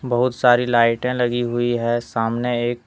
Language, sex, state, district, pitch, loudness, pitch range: Hindi, male, Jharkhand, Deoghar, 120 Hz, -19 LUFS, 120-125 Hz